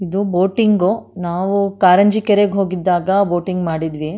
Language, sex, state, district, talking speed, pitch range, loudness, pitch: Kannada, female, Karnataka, Mysore, 115 wpm, 180-200 Hz, -16 LUFS, 190 Hz